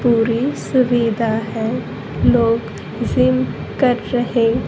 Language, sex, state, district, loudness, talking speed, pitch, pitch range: Hindi, female, Haryana, Jhajjar, -18 LUFS, 90 wpm, 230 Hz, 220-240 Hz